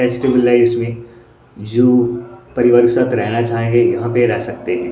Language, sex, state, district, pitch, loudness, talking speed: Hindi, male, Odisha, Sambalpur, 120 Hz, -15 LUFS, 135 wpm